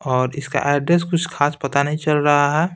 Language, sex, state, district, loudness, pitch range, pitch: Hindi, male, Bihar, Patna, -19 LUFS, 140-155 Hz, 145 Hz